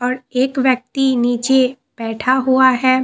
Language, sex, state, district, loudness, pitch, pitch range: Hindi, female, Bihar, Katihar, -16 LUFS, 255 Hz, 250-260 Hz